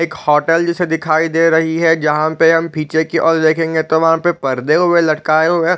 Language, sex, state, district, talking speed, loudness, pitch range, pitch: Hindi, male, Chhattisgarh, Raigarh, 230 wpm, -14 LUFS, 155-165 Hz, 160 Hz